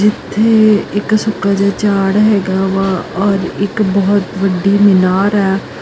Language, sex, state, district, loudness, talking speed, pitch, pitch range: Punjabi, female, Karnataka, Bangalore, -13 LUFS, 135 wpm, 200 Hz, 195-205 Hz